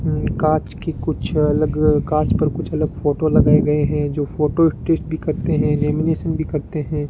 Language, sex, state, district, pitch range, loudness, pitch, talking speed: Hindi, male, Rajasthan, Bikaner, 150-155 Hz, -19 LUFS, 150 Hz, 185 wpm